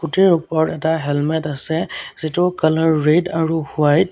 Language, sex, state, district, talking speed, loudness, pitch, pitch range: Assamese, male, Assam, Sonitpur, 160 wpm, -18 LUFS, 160 Hz, 155-165 Hz